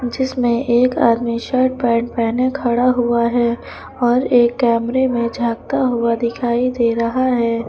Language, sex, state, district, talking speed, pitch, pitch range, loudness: Hindi, female, Uttar Pradesh, Lucknow, 150 wpm, 240 Hz, 235-250 Hz, -17 LUFS